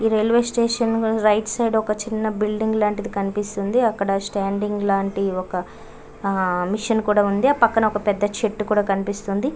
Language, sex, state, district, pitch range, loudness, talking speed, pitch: Telugu, female, Karnataka, Bellary, 200-225 Hz, -21 LUFS, 165 wpm, 210 Hz